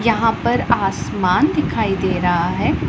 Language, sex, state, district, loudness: Hindi, female, Punjab, Pathankot, -18 LUFS